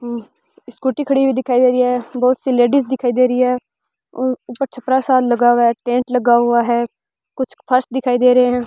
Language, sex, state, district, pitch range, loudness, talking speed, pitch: Hindi, female, Rajasthan, Bikaner, 245-260 Hz, -16 LUFS, 200 wpm, 250 Hz